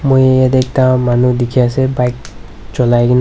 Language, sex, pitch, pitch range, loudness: Nagamese, male, 125 Hz, 120-130 Hz, -12 LUFS